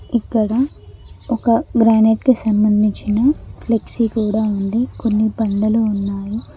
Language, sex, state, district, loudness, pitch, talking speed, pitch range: Telugu, female, Telangana, Mahabubabad, -17 LUFS, 220 Hz, 90 wpm, 210-235 Hz